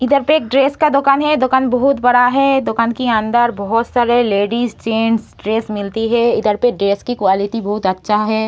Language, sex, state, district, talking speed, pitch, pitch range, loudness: Hindi, female, Uttar Pradesh, Deoria, 205 wpm, 235 Hz, 215-260 Hz, -15 LUFS